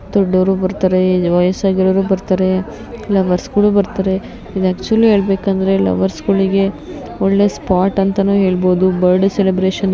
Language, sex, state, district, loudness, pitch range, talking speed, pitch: Kannada, female, Karnataka, Bijapur, -15 LUFS, 185-195 Hz, 125 wpm, 190 Hz